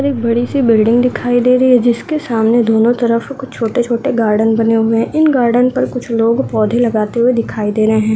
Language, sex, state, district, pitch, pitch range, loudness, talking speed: Hindi, female, Bihar, Saharsa, 235 Hz, 225-250 Hz, -13 LUFS, 230 wpm